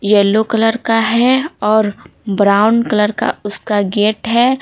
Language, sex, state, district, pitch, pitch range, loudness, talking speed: Hindi, female, Bihar, Patna, 220 Hz, 205-235 Hz, -14 LUFS, 145 wpm